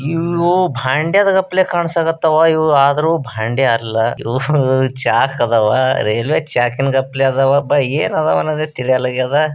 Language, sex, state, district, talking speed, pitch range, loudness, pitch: Kannada, male, Karnataka, Bijapur, 120 wpm, 130-160 Hz, -15 LUFS, 135 Hz